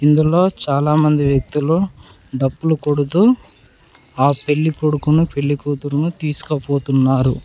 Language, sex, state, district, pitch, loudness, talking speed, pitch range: Telugu, male, Telangana, Mahabubabad, 145 Hz, -17 LUFS, 80 wpm, 140-155 Hz